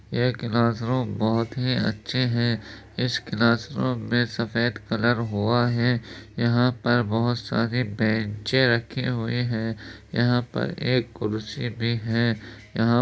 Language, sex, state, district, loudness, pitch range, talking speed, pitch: Hindi, male, Uttar Pradesh, Jyotiba Phule Nagar, -24 LUFS, 110-120 Hz, 160 wpm, 120 Hz